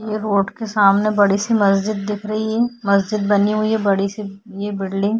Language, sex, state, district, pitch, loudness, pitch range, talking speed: Hindi, female, Bihar, Vaishali, 205 Hz, -18 LUFS, 200-215 Hz, 220 wpm